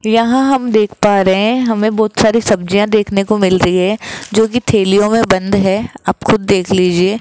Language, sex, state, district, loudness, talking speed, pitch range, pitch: Hindi, female, Rajasthan, Jaipur, -13 LUFS, 210 wpm, 195-220 Hz, 210 Hz